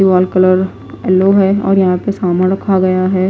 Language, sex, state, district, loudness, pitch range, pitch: Hindi, female, Himachal Pradesh, Shimla, -12 LUFS, 185-195 Hz, 185 Hz